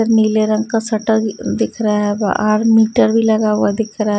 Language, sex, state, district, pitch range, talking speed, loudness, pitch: Hindi, female, Haryana, Rohtak, 215-225 Hz, 215 wpm, -15 LUFS, 215 Hz